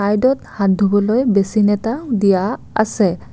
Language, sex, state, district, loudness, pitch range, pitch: Assamese, female, Assam, Kamrup Metropolitan, -16 LUFS, 200-230 Hz, 205 Hz